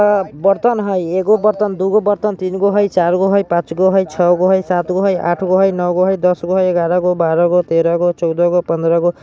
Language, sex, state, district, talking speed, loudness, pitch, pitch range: Bajjika, male, Bihar, Vaishali, 190 wpm, -15 LUFS, 185 Hz, 175-195 Hz